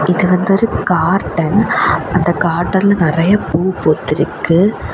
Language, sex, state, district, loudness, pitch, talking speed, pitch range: Tamil, female, Tamil Nadu, Kanyakumari, -14 LUFS, 180 Hz, 110 wpm, 165-190 Hz